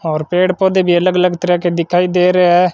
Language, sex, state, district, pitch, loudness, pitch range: Hindi, male, Rajasthan, Bikaner, 180 Hz, -13 LUFS, 175-180 Hz